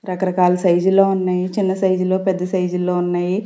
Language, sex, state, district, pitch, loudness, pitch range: Telugu, female, Andhra Pradesh, Sri Satya Sai, 185 Hz, -18 LUFS, 180-190 Hz